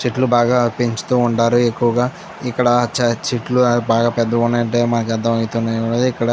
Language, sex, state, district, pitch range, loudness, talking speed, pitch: Telugu, male, Andhra Pradesh, Chittoor, 115-125 Hz, -17 LUFS, 105 wpm, 120 Hz